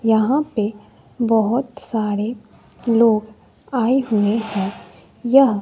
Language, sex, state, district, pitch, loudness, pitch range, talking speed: Hindi, female, Bihar, West Champaran, 225 Hz, -19 LUFS, 215-245 Hz, 95 wpm